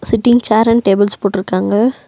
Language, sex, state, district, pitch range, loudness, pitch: Tamil, female, Tamil Nadu, Nilgiris, 200-230 Hz, -13 LUFS, 215 Hz